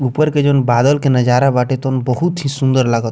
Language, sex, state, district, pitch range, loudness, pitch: Bhojpuri, male, Bihar, Muzaffarpur, 125-140 Hz, -14 LUFS, 130 Hz